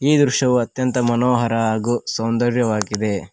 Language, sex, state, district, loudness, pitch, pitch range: Kannada, male, Karnataka, Koppal, -19 LUFS, 120 Hz, 110-125 Hz